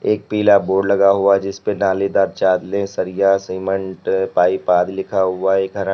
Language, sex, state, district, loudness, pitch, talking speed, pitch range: Hindi, male, Uttar Pradesh, Lalitpur, -17 LUFS, 95 Hz, 180 wpm, 95-100 Hz